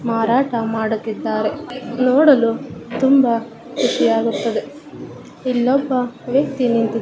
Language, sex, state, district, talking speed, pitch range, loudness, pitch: Kannada, female, Karnataka, Bijapur, 70 wpm, 230-265 Hz, -18 LUFS, 245 Hz